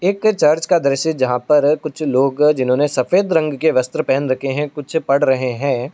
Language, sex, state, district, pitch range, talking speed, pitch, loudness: Hindi, male, Uttar Pradesh, Etah, 130-160 Hz, 200 wpm, 145 Hz, -17 LUFS